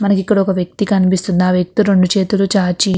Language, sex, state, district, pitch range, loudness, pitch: Telugu, female, Andhra Pradesh, Krishna, 185-200 Hz, -14 LUFS, 195 Hz